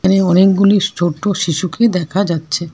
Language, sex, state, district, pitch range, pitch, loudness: Bengali, female, West Bengal, Alipurduar, 170-195 Hz, 185 Hz, -14 LUFS